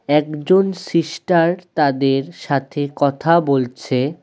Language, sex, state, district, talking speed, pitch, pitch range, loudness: Bengali, male, West Bengal, Alipurduar, 85 wpm, 150 Hz, 140-170 Hz, -18 LUFS